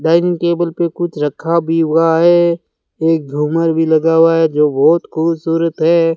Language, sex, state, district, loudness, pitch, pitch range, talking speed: Hindi, male, Rajasthan, Bikaner, -14 LUFS, 165 Hz, 160-170 Hz, 175 wpm